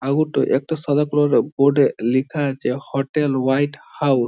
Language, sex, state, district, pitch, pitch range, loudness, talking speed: Bengali, male, West Bengal, Jhargram, 140 Hz, 135-150 Hz, -19 LUFS, 180 wpm